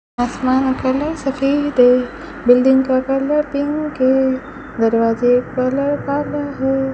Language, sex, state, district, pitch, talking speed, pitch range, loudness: Hindi, female, Rajasthan, Bikaner, 265 Hz, 120 wpm, 255-285 Hz, -17 LUFS